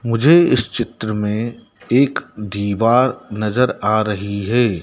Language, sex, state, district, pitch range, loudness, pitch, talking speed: Hindi, male, Madhya Pradesh, Dhar, 105-125 Hz, -17 LUFS, 110 Hz, 125 wpm